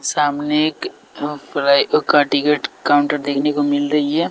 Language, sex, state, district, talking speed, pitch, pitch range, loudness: Hindi, male, Bihar, West Champaran, 125 wpm, 145 Hz, 145-150 Hz, -17 LUFS